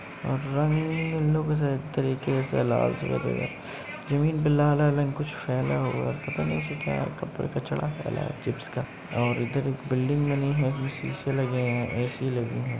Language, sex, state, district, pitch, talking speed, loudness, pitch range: Hindi, male, Uttar Pradesh, Muzaffarnagar, 135 Hz, 140 wpm, -27 LUFS, 125-145 Hz